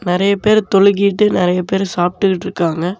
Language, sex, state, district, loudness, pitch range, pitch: Tamil, male, Tamil Nadu, Namakkal, -14 LUFS, 180-200 Hz, 195 Hz